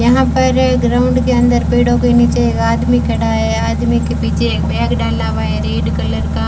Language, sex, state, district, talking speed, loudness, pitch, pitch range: Hindi, female, Rajasthan, Bikaner, 215 wpm, -14 LUFS, 80 Hz, 75-80 Hz